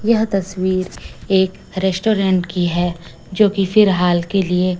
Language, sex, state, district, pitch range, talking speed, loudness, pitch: Hindi, female, Chhattisgarh, Raipur, 180-195 Hz, 150 wpm, -17 LUFS, 185 Hz